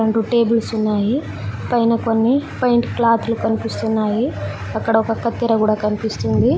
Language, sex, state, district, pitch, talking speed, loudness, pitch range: Telugu, female, Telangana, Mahabubabad, 225 Hz, 120 wpm, -18 LUFS, 215-230 Hz